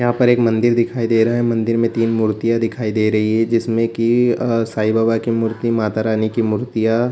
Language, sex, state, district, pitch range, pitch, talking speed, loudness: Hindi, male, Bihar, Jamui, 110-115 Hz, 115 Hz, 235 wpm, -17 LUFS